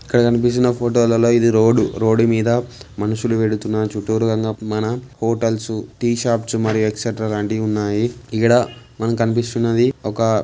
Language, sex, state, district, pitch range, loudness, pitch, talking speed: Telugu, male, Telangana, Karimnagar, 110-120 Hz, -18 LUFS, 115 Hz, 125 wpm